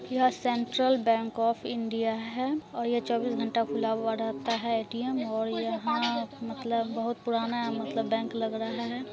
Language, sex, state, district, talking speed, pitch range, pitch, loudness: Hindi, female, Bihar, Araria, 165 wpm, 225-240 Hz, 230 Hz, -30 LUFS